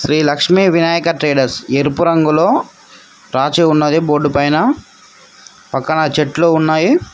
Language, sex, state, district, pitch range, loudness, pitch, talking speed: Telugu, male, Telangana, Mahabubabad, 145-165 Hz, -14 LUFS, 155 Hz, 110 wpm